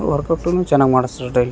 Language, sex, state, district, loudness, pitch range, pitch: Kannada, male, Karnataka, Raichur, -17 LUFS, 125-165 Hz, 140 Hz